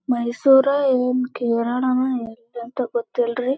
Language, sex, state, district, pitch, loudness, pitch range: Kannada, female, Karnataka, Belgaum, 250 Hz, -20 LUFS, 235-255 Hz